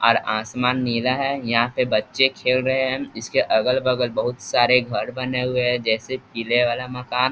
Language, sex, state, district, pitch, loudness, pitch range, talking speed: Hindi, male, Bihar, East Champaran, 125 Hz, -21 LUFS, 120-130 Hz, 180 wpm